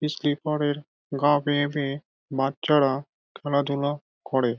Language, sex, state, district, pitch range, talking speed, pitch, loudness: Bengali, male, West Bengal, Dakshin Dinajpur, 140-145 Hz, 120 wpm, 145 Hz, -25 LUFS